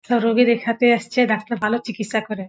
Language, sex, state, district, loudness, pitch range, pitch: Bengali, female, West Bengal, Jhargram, -19 LUFS, 215-240 Hz, 230 Hz